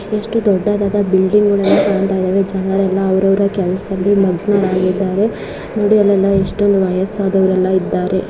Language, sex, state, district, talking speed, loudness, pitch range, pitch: Kannada, female, Karnataka, Dharwad, 110 wpm, -15 LUFS, 190-200 Hz, 195 Hz